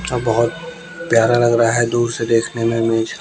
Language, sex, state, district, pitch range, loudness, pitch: Hindi, male, Bihar, West Champaran, 115-125 Hz, -17 LUFS, 115 Hz